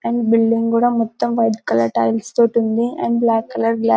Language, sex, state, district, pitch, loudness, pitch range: Telugu, female, Telangana, Karimnagar, 230 Hz, -17 LUFS, 210-235 Hz